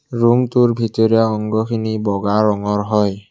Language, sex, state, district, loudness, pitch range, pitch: Assamese, male, Assam, Kamrup Metropolitan, -17 LUFS, 105-115 Hz, 110 Hz